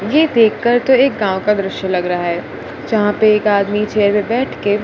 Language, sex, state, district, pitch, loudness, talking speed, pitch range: Hindi, female, Gujarat, Gandhinagar, 210 Hz, -15 LUFS, 225 wpm, 200-230 Hz